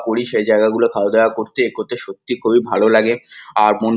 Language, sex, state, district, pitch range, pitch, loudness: Bengali, male, West Bengal, Kolkata, 110-115 Hz, 115 Hz, -16 LUFS